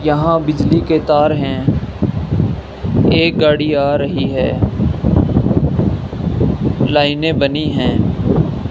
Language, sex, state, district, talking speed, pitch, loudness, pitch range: Hindi, male, Rajasthan, Bikaner, 90 wpm, 150 Hz, -15 LUFS, 140-155 Hz